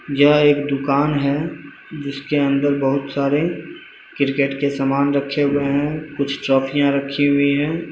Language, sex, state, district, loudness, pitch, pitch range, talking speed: Hindi, male, Bihar, Purnia, -19 LUFS, 140 Hz, 140-145 Hz, 145 wpm